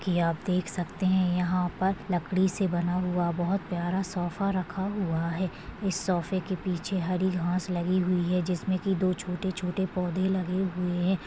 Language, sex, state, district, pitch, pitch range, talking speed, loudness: Hindi, female, Maharashtra, Nagpur, 180 Hz, 175-190 Hz, 180 wpm, -29 LUFS